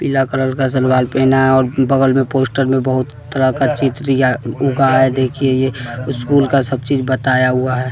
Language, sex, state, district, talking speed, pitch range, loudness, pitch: Hindi, male, Bihar, West Champaran, 195 wpm, 130-135 Hz, -15 LUFS, 130 Hz